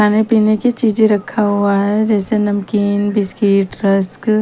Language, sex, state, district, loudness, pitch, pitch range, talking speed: Hindi, female, Haryana, Charkhi Dadri, -15 LUFS, 210 Hz, 200-215 Hz, 165 wpm